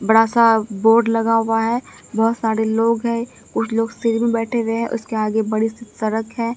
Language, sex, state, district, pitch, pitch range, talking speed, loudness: Hindi, female, Bihar, Katihar, 225 Hz, 220-230 Hz, 190 wpm, -19 LUFS